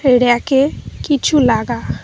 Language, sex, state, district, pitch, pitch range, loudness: Bengali, female, West Bengal, Cooch Behar, 255 Hz, 240-280 Hz, -15 LUFS